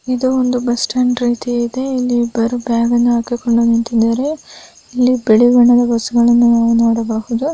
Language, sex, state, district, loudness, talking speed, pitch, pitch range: Kannada, female, Karnataka, Raichur, -14 LUFS, 145 wpm, 240 Hz, 235-250 Hz